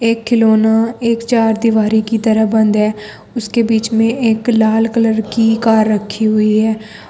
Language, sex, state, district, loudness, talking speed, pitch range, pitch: Hindi, female, Uttar Pradesh, Saharanpur, -13 LUFS, 170 wpm, 220-230 Hz, 225 Hz